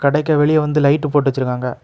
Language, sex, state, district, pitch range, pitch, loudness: Tamil, male, Tamil Nadu, Kanyakumari, 130-150 Hz, 145 Hz, -16 LUFS